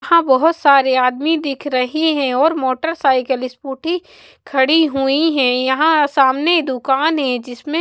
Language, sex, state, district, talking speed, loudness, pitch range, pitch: Hindi, female, Bihar, West Champaran, 140 wpm, -16 LUFS, 260-320 Hz, 275 Hz